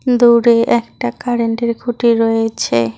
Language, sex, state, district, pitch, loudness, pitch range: Bengali, female, West Bengal, Cooch Behar, 235 Hz, -14 LUFS, 225-240 Hz